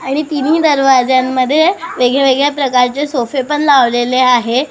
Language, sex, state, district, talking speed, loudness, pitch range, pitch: Marathi, female, Maharashtra, Washim, 125 wpm, -12 LUFS, 255-290 Hz, 270 Hz